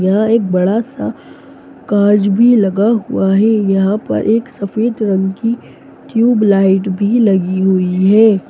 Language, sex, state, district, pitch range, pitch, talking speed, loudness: Hindi, female, Bihar, East Champaran, 195-225 Hz, 205 Hz, 150 wpm, -13 LUFS